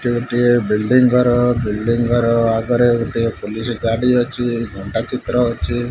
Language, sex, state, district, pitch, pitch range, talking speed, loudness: Odia, male, Odisha, Malkangiri, 120 Hz, 115-120 Hz, 140 wpm, -17 LUFS